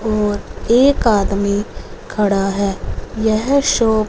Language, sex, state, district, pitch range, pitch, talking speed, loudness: Hindi, female, Punjab, Fazilka, 200-225 Hz, 215 Hz, 115 wpm, -17 LUFS